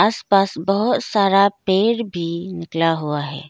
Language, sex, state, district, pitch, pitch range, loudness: Hindi, female, Arunachal Pradesh, Lower Dibang Valley, 190 Hz, 165-200 Hz, -19 LUFS